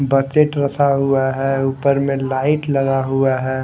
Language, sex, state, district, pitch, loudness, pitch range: Hindi, male, Haryana, Rohtak, 135 Hz, -17 LUFS, 135-140 Hz